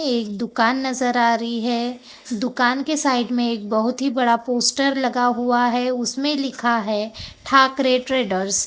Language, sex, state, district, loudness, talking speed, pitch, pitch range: Hindi, female, Maharashtra, Gondia, -20 LUFS, 165 wpm, 245 Hz, 235-260 Hz